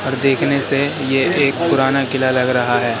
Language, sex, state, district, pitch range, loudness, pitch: Hindi, male, Madhya Pradesh, Katni, 130-140 Hz, -16 LUFS, 135 Hz